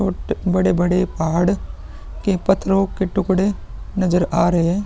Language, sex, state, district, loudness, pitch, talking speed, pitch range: Hindi, male, Uttar Pradesh, Muzaffarnagar, -19 LUFS, 185 Hz, 110 wpm, 175-195 Hz